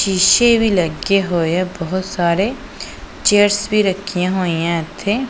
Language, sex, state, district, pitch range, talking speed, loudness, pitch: Punjabi, female, Punjab, Pathankot, 175-205 Hz, 135 wpm, -16 LUFS, 190 Hz